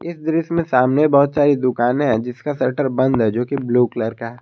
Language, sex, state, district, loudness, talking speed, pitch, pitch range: Hindi, male, Jharkhand, Garhwa, -18 LUFS, 230 wpm, 130 Hz, 120-145 Hz